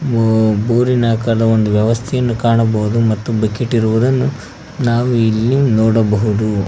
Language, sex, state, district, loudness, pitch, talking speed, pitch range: Kannada, male, Karnataka, Koppal, -14 LUFS, 115 Hz, 100 wpm, 110-120 Hz